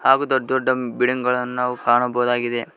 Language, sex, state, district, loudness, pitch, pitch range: Kannada, male, Karnataka, Koppal, -20 LUFS, 125 Hz, 120-130 Hz